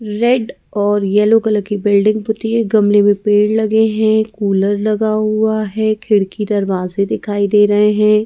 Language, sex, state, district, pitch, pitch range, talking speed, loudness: Hindi, female, Madhya Pradesh, Bhopal, 210 Hz, 205-220 Hz, 175 wpm, -14 LUFS